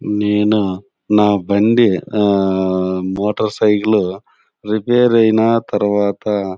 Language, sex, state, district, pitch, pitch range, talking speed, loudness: Telugu, male, Andhra Pradesh, Anantapur, 105 Hz, 100-110 Hz, 80 wpm, -15 LUFS